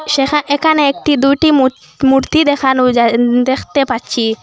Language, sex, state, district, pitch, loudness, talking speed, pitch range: Bengali, female, Assam, Hailakandi, 275 Hz, -13 LUFS, 135 wpm, 255-295 Hz